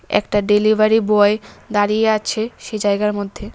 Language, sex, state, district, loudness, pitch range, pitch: Bengali, female, Tripura, West Tripura, -17 LUFS, 205-215 Hz, 210 Hz